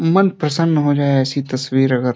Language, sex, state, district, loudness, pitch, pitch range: Hindi, male, Uttar Pradesh, Deoria, -17 LUFS, 145 Hz, 135-165 Hz